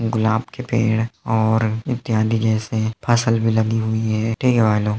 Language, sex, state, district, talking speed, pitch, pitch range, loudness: Hindi, male, Uttar Pradesh, Hamirpur, 180 wpm, 110 Hz, 110-115 Hz, -19 LUFS